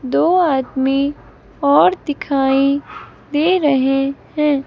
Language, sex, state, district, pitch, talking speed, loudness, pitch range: Hindi, female, Himachal Pradesh, Shimla, 280 Hz, 90 wpm, -16 LUFS, 270-300 Hz